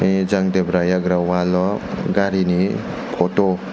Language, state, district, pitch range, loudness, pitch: Kokborok, Tripura, West Tripura, 90-95 Hz, -19 LUFS, 95 Hz